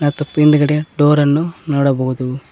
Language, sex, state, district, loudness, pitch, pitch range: Kannada, male, Karnataka, Koppal, -15 LUFS, 145 Hz, 140-150 Hz